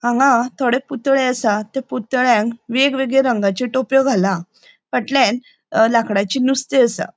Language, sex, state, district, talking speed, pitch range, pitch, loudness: Konkani, female, Goa, North and South Goa, 115 wpm, 230-265 Hz, 250 Hz, -17 LUFS